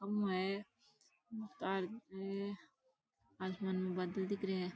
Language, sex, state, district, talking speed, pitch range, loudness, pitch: Rajasthani, female, Rajasthan, Churu, 115 wpm, 185-200 Hz, -41 LUFS, 195 Hz